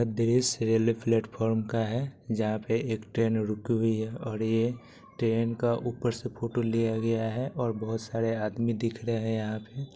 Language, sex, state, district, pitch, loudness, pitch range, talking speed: Maithili, male, Bihar, Supaul, 115 Hz, -29 LUFS, 110-120 Hz, 195 wpm